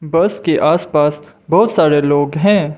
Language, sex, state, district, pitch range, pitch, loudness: Hindi, male, Mizoram, Aizawl, 145-160 Hz, 150 Hz, -14 LUFS